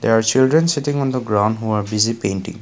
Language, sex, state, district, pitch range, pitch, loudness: English, male, Assam, Kamrup Metropolitan, 105-130 Hz, 115 Hz, -18 LUFS